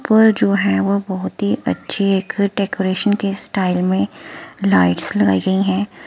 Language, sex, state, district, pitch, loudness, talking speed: Hindi, female, Himachal Pradesh, Shimla, 190 Hz, -17 LUFS, 160 wpm